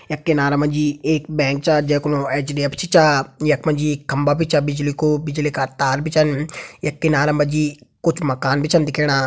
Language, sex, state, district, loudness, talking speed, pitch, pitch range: Garhwali, male, Uttarakhand, Tehri Garhwal, -19 LUFS, 205 wpm, 150 Hz, 145-155 Hz